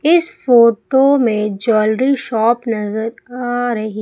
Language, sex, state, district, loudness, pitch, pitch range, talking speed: Hindi, female, Madhya Pradesh, Umaria, -15 LUFS, 235 Hz, 220-260 Hz, 120 wpm